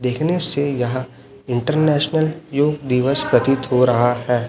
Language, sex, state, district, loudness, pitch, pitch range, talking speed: Hindi, male, Chhattisgarh, Raipur, -18 LUFS, 135 Hz, 125-150 Hz, 135 wpm